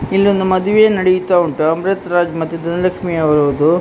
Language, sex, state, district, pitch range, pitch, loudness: Kannada, female, Karnataka, Dakshina Kannada, 160-190 Hz, 175 Hz, -14 LUFS